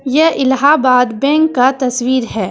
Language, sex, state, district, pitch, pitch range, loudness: Hindi, female, Jharkhand, Deoghar, 260 Hz, 250-290 Hz, -12 LUFS